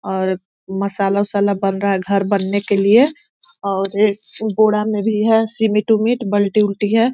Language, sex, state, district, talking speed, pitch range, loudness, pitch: Hindi, female, Chhattisgarh, Korba, 170 wpm, 200-220 Hz, -17 LUFS, 205 Hz